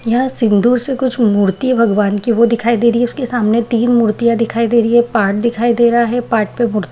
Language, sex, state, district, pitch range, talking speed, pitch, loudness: Hindi, female, Bihar, Madhepura, 225-240 Hz, 260 wpm, 235 Hz, -14 LUFS